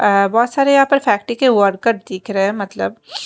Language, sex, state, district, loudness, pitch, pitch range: Hindi, female, Maharashtra, Mumbai Suburban, -16 LUFS, 205 Hz, 200-245 Hz